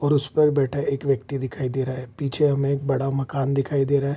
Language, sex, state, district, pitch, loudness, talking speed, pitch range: Hindi, male, Bihar, Vaishali, 140 Hz, -23 LUFS, 270 wpm, 135-140 Hz